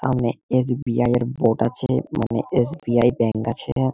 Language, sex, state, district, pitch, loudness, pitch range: Bengali, male, West Bengal, Malda, 120 Hz, -21 LUFS, 120-130 Hz